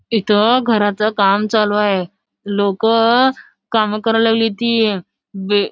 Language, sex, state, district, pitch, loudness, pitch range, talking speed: Marathi, female, Maharashtra, Solapur, 215 Hz, -15 LUFS, 205-225 Hz, 125 wpm